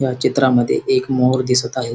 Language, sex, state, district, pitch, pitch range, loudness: Marathi, male, Maharashtra, Sindhudurg, 130 Hz, 125-130 Hz, -17 LUFS